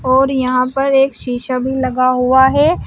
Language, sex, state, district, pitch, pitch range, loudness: Hindi, female, Uttar Pradesh, Shamli, 260 Hz, 255-270 Hz, -14 LUFS